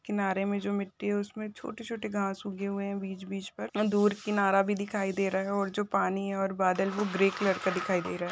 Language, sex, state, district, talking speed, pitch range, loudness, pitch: Hindi, female, Chhattisgarh, Bilaspur, 240 wpm, 195-205 Hz, -30 LUFS, 200 Hz